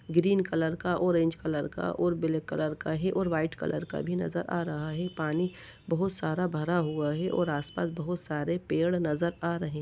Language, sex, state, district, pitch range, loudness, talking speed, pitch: Hindi, male, Bihar, Lakhisarai, 155-175 Hz, -30 LUFS, 200 wpm, 170 Hz